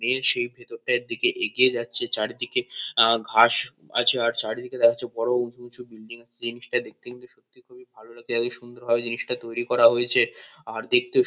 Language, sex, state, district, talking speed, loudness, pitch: Bengali, male, West Bengal, Kolkata, 200 wpm, -21 LUFS, 125 Hz